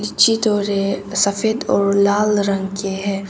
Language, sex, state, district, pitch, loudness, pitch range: Hindi, female, Arunachal Pradesh, Papum Pare, 200 Hz, -17 LUFS, 195-210 Hz